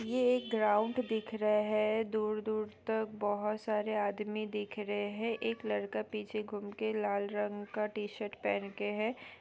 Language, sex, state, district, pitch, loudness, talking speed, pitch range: Hindi, female, Bihar, Saran, 215 Hz, -35 LUFS, 165 wpm, 205-220 Hz